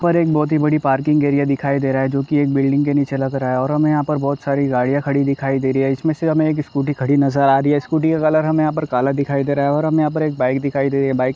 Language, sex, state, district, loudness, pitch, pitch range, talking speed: Hindi, male, Chhattisgarh, Bastar, -17 LUFS, 140 Hz, 135-150 Hz, 320 wpm